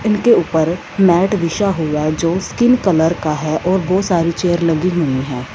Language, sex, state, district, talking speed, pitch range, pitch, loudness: Hindi, female, Punjab, Fazilka, 195 wpm, 160-190 Hz, 170 Hz, -15 LUFS